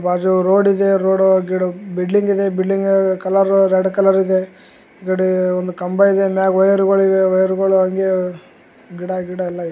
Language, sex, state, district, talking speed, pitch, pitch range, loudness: Kannada, male, Karnataka, Gulbarga, 155 wpm, 190 Hz, 185-195 Hz, -16 LUFS